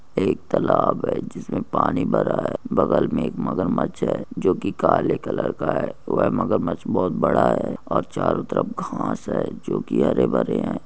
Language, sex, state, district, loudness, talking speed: Hindi, male, Andhra Pradesh, Krishna, -22 LUFS, 190 wpm